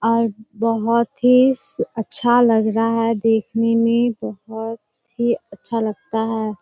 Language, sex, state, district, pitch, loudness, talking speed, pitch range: Hindi, female, Bihar, Kishanganj, 230 Hz, -19 LUFS, 135 wpm, 220-235 Hz